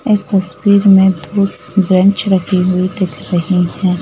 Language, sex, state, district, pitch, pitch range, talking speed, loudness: Hindi, female, Madhya Pradesh, Bhopal, 190 Hz, 180-200 Hz, 150 wpm, -13 LUFS